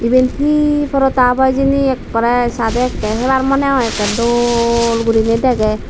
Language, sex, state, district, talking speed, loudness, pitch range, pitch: Chakma, female, Tripura, Dhalai, 150 wpm, -14 LUFS, 230-270 Hz, 250 Hz